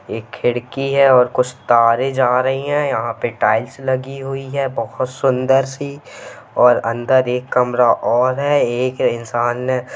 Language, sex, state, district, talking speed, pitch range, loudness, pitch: Hindi, male, Jharkhand, Jamtara, 160 wpm, 125-135 Hz, -17 LUFS, 130 Hz